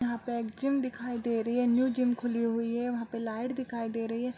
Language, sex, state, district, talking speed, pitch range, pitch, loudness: Hindi, female, Bihar, Saharsa, 275 wpm, 230-245 Hz, 240 Hz, -31 LUFS